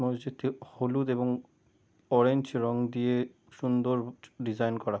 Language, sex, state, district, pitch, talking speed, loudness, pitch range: Bengali, male, West Bengal, Jalpaiguri, 125 Hz, 110 wpm, -30 LUFS, 120-130 Hz